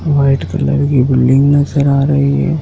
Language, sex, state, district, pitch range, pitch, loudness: Hindi, male, Madhya Pradesh, Dhar, 135-145 Hz, 140 Hz, -12 LUFS